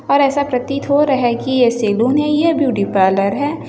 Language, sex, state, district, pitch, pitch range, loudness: Hindi, female, Chhattisgarh, Bilaspur, 265 Hz, 235-285 Hz, -15 LUFS